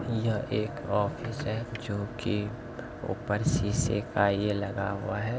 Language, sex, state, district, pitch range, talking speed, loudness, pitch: Hindi, male, Bihar, Begusarai, 100-115 Hz, 145 wpm, -30 LUFS, 110 Hz